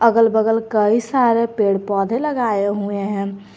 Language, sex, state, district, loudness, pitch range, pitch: Hindi, female, Jharkhand, Garhwa, -18 LUFS, 200-230 Hz, 220 Hz